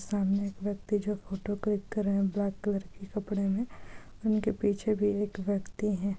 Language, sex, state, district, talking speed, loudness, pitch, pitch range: Hindi, female, Bihar, Jahanabad, 195 wpm, -31 LUFS, 205 Hz, 200-210 Hz